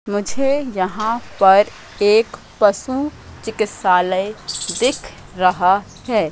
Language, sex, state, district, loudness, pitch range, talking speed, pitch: Hindi, female, Madhya Pradesh, Katni, -18 LUFS, 190-225 Hz, 85 wpm, 205 Hz